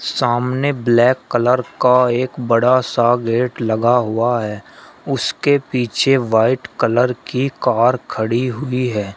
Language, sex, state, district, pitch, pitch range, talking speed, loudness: Hindi, male, Uttar Pradesh, Shamli, 120 Hz, 115-130 Hz, 130 wpm, -17 LUFS